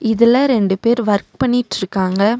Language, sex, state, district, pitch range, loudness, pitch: Tamil, female, Tamil Nadu, Nilgiris, 200-240 Hz, -16 LUFS, 225 Hz